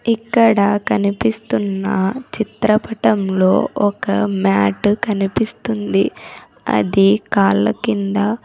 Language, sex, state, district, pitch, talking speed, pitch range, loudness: Telugu, female, Andhra Pradesh, Sri Satya Sai, 200 Hz, 65 wpm, 185-220 Hz, -17 LUFS